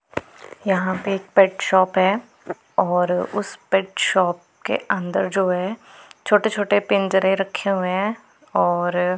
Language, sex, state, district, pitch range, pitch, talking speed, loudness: Hindi, female, Punjab, Pathankot, 185-200 Hz, 190 Hz, 135 wpm, -21 LUFS